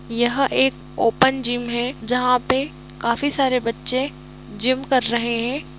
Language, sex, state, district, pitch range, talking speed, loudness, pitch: Hindi, female, Bihar, East Champaran, 235-265 Hz, 145 wpm, -21 LUFS, 250 Hz